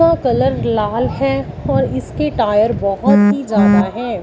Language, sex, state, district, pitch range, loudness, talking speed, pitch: Hindi, female, Punjab, Fazilka, 145-230 Hz, -15 LUFS, 155 wpm, 205 Hz